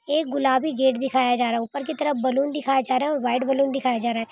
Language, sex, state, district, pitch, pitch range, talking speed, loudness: Hindi, female, Bihar, Jamui, 265 Hz, 250-280 Hz, 335 wpm, -23 LUFS